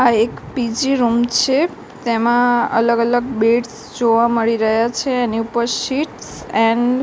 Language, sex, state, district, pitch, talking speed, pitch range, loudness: Gujarati, female, Gujarat, Gandhinagar, 235 Hz, 155 wpm, 230-245 Hz, -17 LUFS